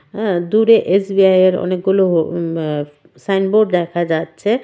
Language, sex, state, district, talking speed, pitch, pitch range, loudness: Bengali, female, Tripura, West Tripura, 155 wpm, 185 Hz, 170-200 Hz, -15 LUFS